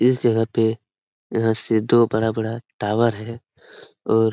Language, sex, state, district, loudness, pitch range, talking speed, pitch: Hindi, male, Bihar, Lakhisarai, -21 LUFS, 110-115 Hz, 140 wpm, 115 Hz